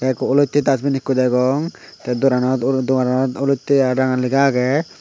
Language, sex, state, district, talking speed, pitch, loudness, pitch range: Chakma, male, Tripura, Unakoti, 165 wpm, 130 Hz, -17 LUFS, 130-140 Hz